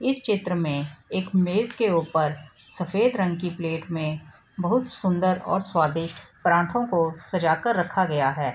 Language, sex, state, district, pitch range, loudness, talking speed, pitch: Hindi, female, Bihar, Sitamarhi, 160-190 Hz, -24 LUFS, 160 wpm, 175 Hz